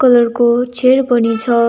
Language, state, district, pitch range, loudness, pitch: Nepali, West Bengal, Darjeeling, 235-250 Hz, -13 LUFS, 240 Hz